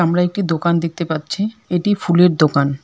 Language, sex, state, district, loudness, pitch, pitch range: Bengali, female, West Bengal, Alipurduar, -17 LUFS, 170 Hz, 160-180 Hz